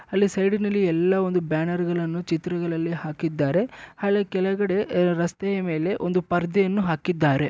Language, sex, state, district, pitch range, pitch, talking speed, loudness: Kannada, male, Karnataka, Bellary, 170-195 Hz, 180 Hz, 105 wpm, -24 LUFS